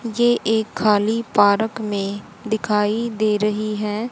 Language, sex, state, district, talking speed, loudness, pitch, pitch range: Hindi, female, Haryana, Charkhi Dadri, 130 wpm, -20 LUFS, 215 Hz, 210-225 Hz